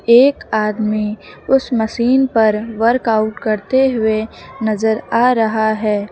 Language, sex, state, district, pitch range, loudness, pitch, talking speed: Hindi, female, Uttar Pradesh, Lucknow, 215-240 Hz, -16 LUFS, 220 Hz, 115 wpm